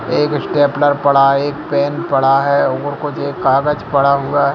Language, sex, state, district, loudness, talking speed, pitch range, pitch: Hindi, male, Bihar, Lakhisarai, -15 LUFS, 160 wpm, 140-145 Hz, 140 Hz